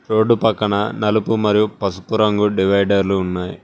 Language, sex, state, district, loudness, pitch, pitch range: Telugu, male, Telangana, Mahabubabad, -17 LUFS, 105 Hz, 100-110 Hz